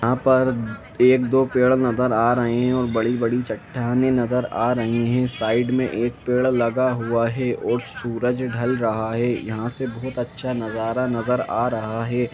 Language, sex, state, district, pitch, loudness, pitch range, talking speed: Hindi, male, Jharkhand, Jamtara, 120 Hz, -21 LUFS, 115-125 Hz, 175 wpm